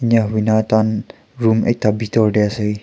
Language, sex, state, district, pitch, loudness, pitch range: Nagamese, male, Nagaland, Kohima, 110 Hz, -17 LUFS, 105-115 Hz